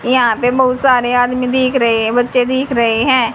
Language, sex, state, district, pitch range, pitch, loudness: Hindi, female, Haryana, Charkhi Dadri, 240-260 Hz, 250 Hz, -13 LUFS